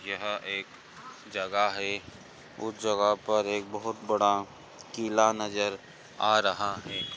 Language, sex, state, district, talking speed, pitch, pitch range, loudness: Hindi, male, Maharashtra, Pune, 125 wpm, 105 Hz, 100-110 Hz, -29 LUFS